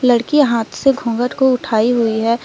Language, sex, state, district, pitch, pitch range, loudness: Hindi, female, Jharkhand, Deoghar, 245 Hz, 230-265 Hz, -15 LUFS